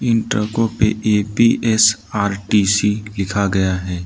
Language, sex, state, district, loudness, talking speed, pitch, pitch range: Hindi, male, Arunachal Pradesh, Lower Dibang Valley, -17 LUFS, 105 wpm, 105 Hz, 100-110 Hz